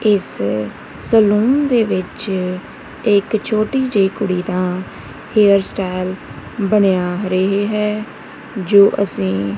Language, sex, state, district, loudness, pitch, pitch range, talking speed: Punjabi, female, Punjab, Kapurthala, -17 LUFS, 200 Hz, 185-210 Hz, 100 wpm